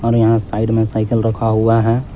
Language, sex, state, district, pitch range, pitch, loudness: Hindi, male, Jharkhand, Palamu, 110-115 Hz, 115 Hz, -15 LUFS